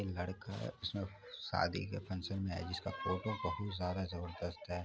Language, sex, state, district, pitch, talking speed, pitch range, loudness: Hindi, male, Bihar, Araria, 95 Hz, 185 wpm, 90-100 Hz, -41 LUFS